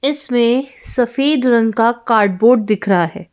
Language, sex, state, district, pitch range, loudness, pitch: Hindi, female, Madhya Pradesh, Bhopal, 215-250 Hz, -15 LUFS, 235 Hz